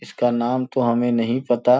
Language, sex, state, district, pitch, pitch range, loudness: Hindi, male, Uttar Pradesh, Gorakhpur, 120 Hz, 120-125 Hz, -20 LUFS